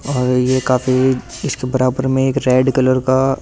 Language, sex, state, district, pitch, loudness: Hindi, male, Delhi, New Delhi, 130 Hz, -16 LUFS